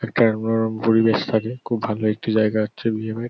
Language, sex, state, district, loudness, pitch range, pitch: Bengali, male, West Bengal, North 24 Parganas, -21 LUFS, 110-115 Hz, 110 Hz